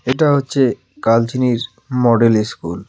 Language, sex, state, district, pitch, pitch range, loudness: Bengali, male, West Bengal, Alipurduar, 120 Hz, 115-130 Hz, -16 LUFS